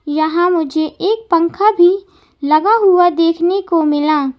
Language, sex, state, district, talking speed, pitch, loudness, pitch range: Hindi, female, Uttar Pradesh, Lalitpur, 135 wpm, 340 Hz, -14 LUFS, 310-385 Hz